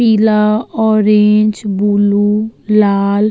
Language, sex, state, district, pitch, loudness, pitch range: Hindi, female, Uttar Pradesh, Jalaun, 210 Hz, -12 LUFS, 205-215 Hz